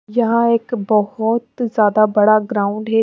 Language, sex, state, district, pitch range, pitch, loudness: Hindi, female, Bihar, West Champaran, 210-235 Hz, 220 Hz, -16 LUFS